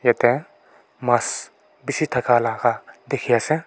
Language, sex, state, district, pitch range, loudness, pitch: Nagamese, male, Nagaland, Kohima, 120-145 Hz, -22 LUFS, 125 Hz